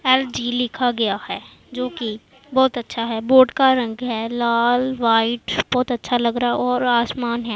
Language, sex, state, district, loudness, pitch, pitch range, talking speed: Hindi, female, Punjab, Pathankot, -19 LUFS, 245 Hz, 235-255 Hz, 180 wpm